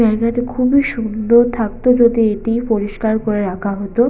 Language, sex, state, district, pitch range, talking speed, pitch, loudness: Bengali, female, West Bengal, Purulia, 215-240 Hz, 145 wpm, 225 Hz, -16 LUFS